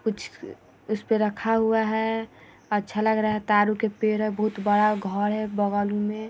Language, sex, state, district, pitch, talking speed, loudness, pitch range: Hindi, female, Bihar, Vaishali, 215 Hz, 180 wpm, -24 LUFS, 210-220 Hz